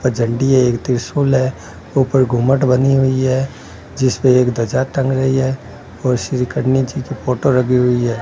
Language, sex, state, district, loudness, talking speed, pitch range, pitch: Hindi, male, Rajasthan, Bikaner, -16 LUFS, 190 wpm, 125-135 Hz, 130 Hz